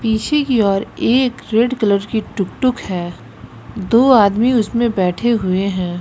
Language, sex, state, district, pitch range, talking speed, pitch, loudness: Hindi, female, Uttar Pradesh, Lucknow, 185-240 Hz, 150 wpm, 215 Hz, -16 LUFS